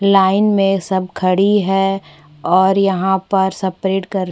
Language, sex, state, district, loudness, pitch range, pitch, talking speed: Hindi, female, Chhattisgarh, Bastar, -15 LUFS, 185-195 Hz, 190 Hz, 165 wpm